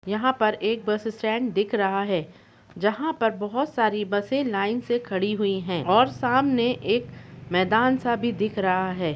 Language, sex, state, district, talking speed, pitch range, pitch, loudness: Hindi, female, Chhattisgarh, Rajnandgaon, 80 wpm, 195-240 Hz, 215 Hz, -24 LUFS